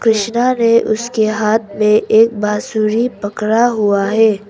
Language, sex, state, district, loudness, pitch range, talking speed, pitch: Hindi, female, Arunachal Pradesh, Papum Pare, -14 LUFS, 210-230 Hz, 135 wpm, 220 Hz